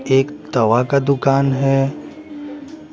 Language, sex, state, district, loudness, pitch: Hindi, male, Bihar, Patna, -17 LUFS, 140 Hz